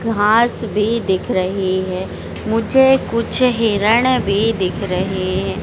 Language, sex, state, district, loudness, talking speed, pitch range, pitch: Hindi, female, Madhya Pradesh, Dhar, -17 LUFS, 130 wpm, 190-230 Hz, 215 Hz